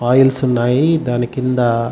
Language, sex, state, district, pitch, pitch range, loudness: Telugu, male, Andhra Pradesh, Chittoor, 125 Hz, 120-130 Hz, -15 LUFS